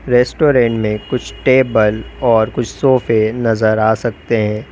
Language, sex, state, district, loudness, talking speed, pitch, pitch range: Hindi, male, Uttar Pradesh, Lalitpur, -15 LUFS, 140 wpm, 115 Hz, 110-125 Hz